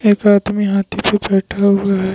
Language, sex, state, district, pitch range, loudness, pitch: Hindi, male, Jharkhand, Ranchi, 195-205 Hz, -15 LUFS, 200 Hz